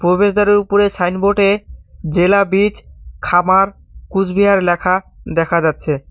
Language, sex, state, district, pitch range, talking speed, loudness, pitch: Bengali, male, West Bengal, Cooch Behar, 175-200 Hz, 100 wpm, -15 LUFS, 190 Hz